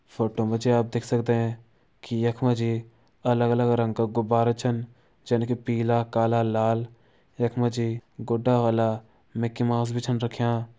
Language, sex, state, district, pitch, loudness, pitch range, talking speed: Garhwali, male, Uttarakhand, Uttarkashi, 115 Hz, -25 LUFS, 115-120 Hz, 155 wpm